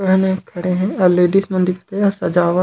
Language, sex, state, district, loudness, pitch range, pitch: Chhattisgarhi, male, Chhattisgarh, Raigarh, -17 LUFS, 180-190 Hz, 185 Hz